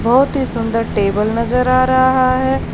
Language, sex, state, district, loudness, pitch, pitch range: Hindi, female, Haryana, Charkhi Dadri, -15 LUFS, 255 Hz, 230-260 Hz